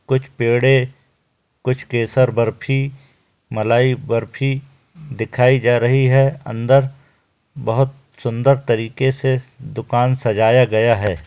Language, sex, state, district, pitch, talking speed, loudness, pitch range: Hindi, male, Bihar, Jamui, 130 Hz, 110 wpm, -17 LUFS, 115-135 Hz